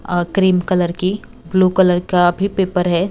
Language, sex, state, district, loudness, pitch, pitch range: Hindi, female, Bihar, West Champaran, -16 LUFS, 185 Hz, 175-190 Hz